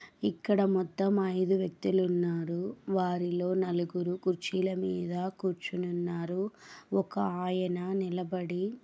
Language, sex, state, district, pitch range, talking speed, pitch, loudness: Telugu, female, Andhra Pradesh, Chittoor, 175-190 Hz, 95 wpm, 185 Hz, -32 LUFS